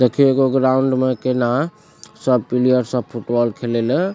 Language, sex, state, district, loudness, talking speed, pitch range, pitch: Maithili, male, Bihar, Supaul, -18 LUFS, 175 wpm, 120-135 Hz, 125 Hz